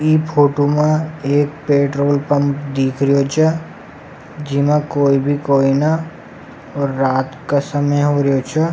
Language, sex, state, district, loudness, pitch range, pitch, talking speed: Rajasthani, male, Rajasthan, Nagaur, -16 LUFS, 140-150 Hz, 145 Hz, 135 wpm